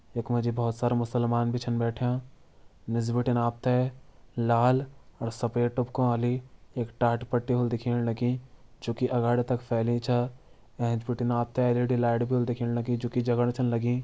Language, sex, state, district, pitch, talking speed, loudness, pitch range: Garhwali, male, Uttarakhand, Tehri Garhwal, 120 Hz, 180 wpm, -28 LUFS, 120-125 Hz